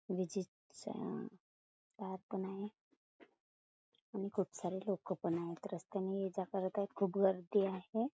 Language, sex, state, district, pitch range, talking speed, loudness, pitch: Marathi, female, Maharashtra, Chandrapur, 185-200 Hz, 130 wpm, -40 LUFS, 195 Hz